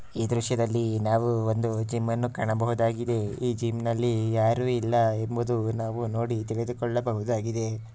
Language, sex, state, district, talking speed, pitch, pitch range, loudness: Kannada, male, Karnataka, Shimoga, 115 wpm, 115 Hz, 110-120 Hz, -27 LUFS